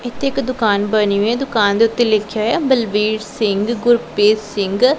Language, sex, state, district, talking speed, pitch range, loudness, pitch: Punjabi, female, Punjab, Pathankot, 190 wpm, 210-240 Hz, -16 LUFS, 220 Hz